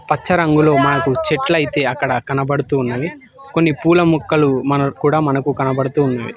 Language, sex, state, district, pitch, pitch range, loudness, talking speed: Telugu, male, Telangana, Hyderabad, 145 Hz, 135-160 Hz, -16 LUFS, 120 wpm